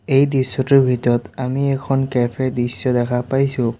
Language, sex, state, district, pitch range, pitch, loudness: Assamese, male, Assam, Sonitpur, 120-135 Hz, 130 Hz, -18 LUFS